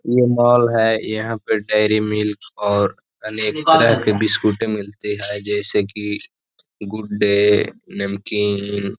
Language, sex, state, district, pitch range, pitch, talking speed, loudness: Hindi, male, Bihar, Gaya, 105-110 Hz, 105 Hz, 135 wpm, -18 LUFS